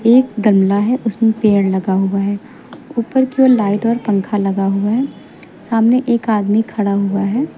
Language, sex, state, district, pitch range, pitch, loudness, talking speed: Hindi, female, Uttar Pradesh, Lucknow, 200-240 Hz, 220 Hz, -15 LUFS, 180 wpm